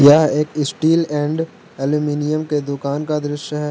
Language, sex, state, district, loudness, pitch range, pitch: Hindi, male, Jharkhand, Garhwa, -19 LUFS, 145-155 Hz, 150 Hz